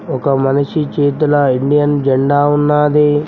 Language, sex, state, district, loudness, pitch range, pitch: Telugu, male, Telangana, Mahabubabad, -13 LUFS, 140-150 Hz, 145 Hz